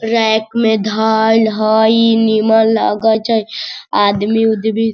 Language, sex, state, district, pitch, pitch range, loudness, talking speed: Hindi, female, Bihar, Sitamarhi, 220 Hz, 220-225 Hz, -13 LUFS, 110 wpm